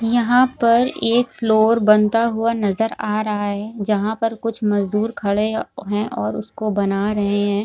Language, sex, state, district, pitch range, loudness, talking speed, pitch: Hindi, female, Bihar, Supaul, 205-230 Hz, -19 LUFS, 165 wpm, 215 Hz